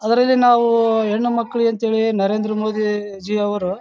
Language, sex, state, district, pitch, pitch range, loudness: Kannada, male, Karnataka, Bellary, 220 Hz, 210-235 Hz, -18 LUFS